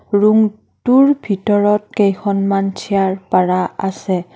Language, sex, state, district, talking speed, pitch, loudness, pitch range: Assamese, female, Assam, Kamrup Metropolitan, 95 wpm, 200 Hz, -16 LUFS, 190-210 Hz